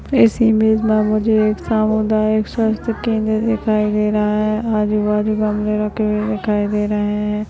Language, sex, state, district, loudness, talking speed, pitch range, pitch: Hindi, male, Uttarakhand, Tehri Garhwal, -17 LUFS, 170 wpm, 210-220 Hz, 215 Hz